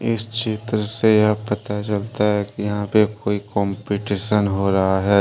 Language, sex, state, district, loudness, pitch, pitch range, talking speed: Hindi, male, Jharkhand, Deoghar, -20 LUFS, 105 Hz, 100-105 Hz, 170 wpm